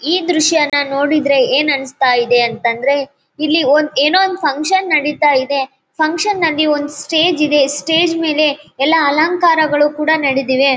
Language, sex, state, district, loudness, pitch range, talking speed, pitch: Kannada, female, Karnataka, Bellary, -14 LUFS, 280-320 Hz, 140 wpm, 295 Hz